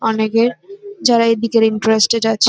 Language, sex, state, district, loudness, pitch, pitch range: Bengali, female, West Bengal, North 24 Parganas, -15 LUFS, 230 Hz, 220-240 Hz